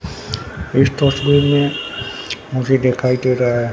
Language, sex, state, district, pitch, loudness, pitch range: Hindi, male, Bihar, Katihar, 130 Hz, -17 LUFS, 125-140 Hz